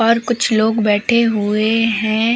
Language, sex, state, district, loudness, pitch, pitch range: Hindi, female, Uttar Pradesh, Hamirpur, -15 LUFS, 225 Hz, 215-230 Hz